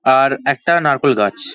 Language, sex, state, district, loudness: Bengali, male, West Bengal, Paschim Medinipur, -15 LUFS